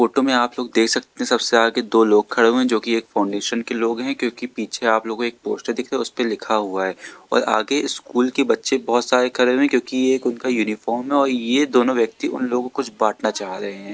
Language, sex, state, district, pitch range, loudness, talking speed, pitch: Hindi, male, Uttar Pradesh, Lucknow, 110-125 Hz, -20 LUFS, 270 wpm, 120 Hz